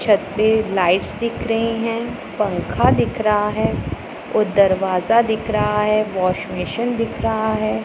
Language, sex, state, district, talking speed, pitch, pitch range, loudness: Hindi, female, Punjab, Pathankot, 155 wpm, 215 Hz, 200-225 Hz, -19 LUFS